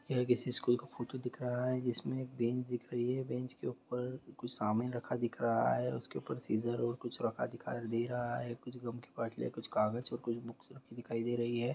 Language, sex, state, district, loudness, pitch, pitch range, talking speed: Hindi, male, Bihar, Kishanganj, -37 LUFS, 120 Hz, 120-125 Hz, 235 wpm